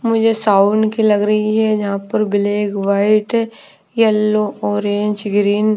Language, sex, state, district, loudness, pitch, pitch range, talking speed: Hindi, female, Bihar, Patna, -16 LUFS, 210 Hz, 205-220 Hz, 145 wpm